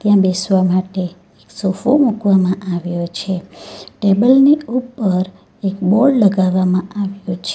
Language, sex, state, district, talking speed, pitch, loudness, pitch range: Gujarati, female, Gujarat, Valsad, 120 wpm, 190 Hz, -16 LUFS, 185-210 Hz